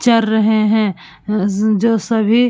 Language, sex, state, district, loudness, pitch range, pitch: Hindi, female, Uttar Pradesh, Budaun, -15 LUFS, 210-225 Hz, 220 Hz